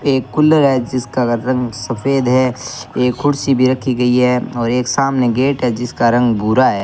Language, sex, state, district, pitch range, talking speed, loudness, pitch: Hindi, male, Rajasthan, Bikaner, 120-135 Hz, 195 wpm, -15 LUFS, 125 Hz